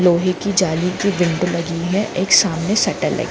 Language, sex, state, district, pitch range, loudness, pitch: Hindi, female, Jharkhand, Jamtara, 175-195 Hz, -17 LUFS, 185 Hz